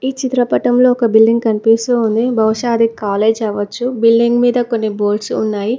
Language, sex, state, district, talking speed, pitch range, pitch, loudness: Telugu, female, Telangana, Mahabubabad, 155 wpm, 220-245 Hz, 230 Hz, -14 LUFS